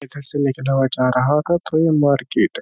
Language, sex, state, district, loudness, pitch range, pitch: Hindi, male, Uttar Pradesh, Jyotiba Phule Nagar, -18 LUFS, 135-160 Hz, 145 Hz